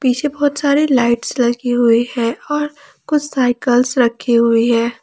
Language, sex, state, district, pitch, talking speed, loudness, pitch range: Hindi, female, Jharkhand, Palamu, 245 Hz, 155 wpm, -15 LUFS, 235-285 Hz